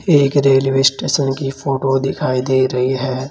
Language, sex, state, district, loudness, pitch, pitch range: Hindi, male, Rajasthan, Jaipur, -16 LUFS, 135 Hz, 130-140 Hz